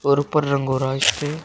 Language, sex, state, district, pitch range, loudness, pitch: Hindi, male, Uttar Pradesh, Shamli, 135-150 Hz, -20 LUFS, 140 Hz